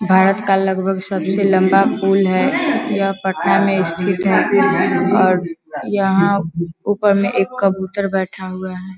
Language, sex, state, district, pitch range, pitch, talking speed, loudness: Hindi, female, Bihar, Vaishali, 185-195 Hz, 190 Hz, 145 wpm, -16 LUFS